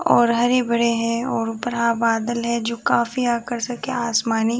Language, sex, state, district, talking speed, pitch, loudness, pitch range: Hindi, female, Bihar, Muzaffarpur, 170 wpm, 235 Hz, -21 LUFS, 230-240 Hz